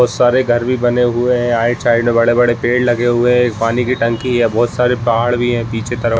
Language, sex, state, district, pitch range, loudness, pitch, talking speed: Hindi, male, Jharkhand, Jamtara, 115-125 Hz, -14 LUFS, 120 Hz, 250 wpm